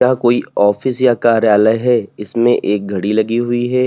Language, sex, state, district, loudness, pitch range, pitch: Hindi, male, Uttar Pradesh, Lalitpur, -14 LUFS, 105-120 Hz, 115 Hz